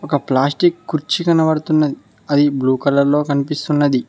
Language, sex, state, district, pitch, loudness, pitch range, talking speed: Telugu, male, Telangana, Mahabubabad, 145 Hz, -16 LUFS, 140-155 Hz, 130 wpm